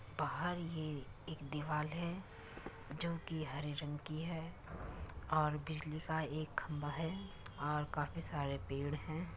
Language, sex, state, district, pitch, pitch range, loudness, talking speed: Hindi, female, Uttar Pradesh, Muzaffarnagar, 150 Hz, 145-160 Hz, -42 LUFS, 140 wpm